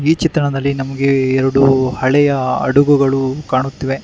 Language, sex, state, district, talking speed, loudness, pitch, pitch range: Kannada, male, Karnataka, Bangalore, 105 wpm, -14 LUFS, 135 Hz, 130-140 Hz